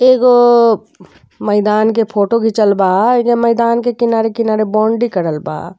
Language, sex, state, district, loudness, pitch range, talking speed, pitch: Bhojpuri, female, Uttar Pradesh, Deoria, -13 LUFS, 210-235 Hz, 135 wpm, 225 Hz